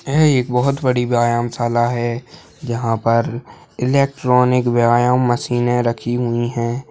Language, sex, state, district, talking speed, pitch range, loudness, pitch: Hindi, male, Bihar, Jahanabad, 130 wpm, 120-125 Hz, -17 LUFS, 120 Hz